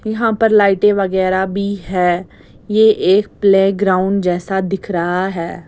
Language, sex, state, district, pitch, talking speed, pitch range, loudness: Hindi, female, Bihar, West Champaran, 195 Hz, 135 wpm, 185-205 Hz, -15 LUFS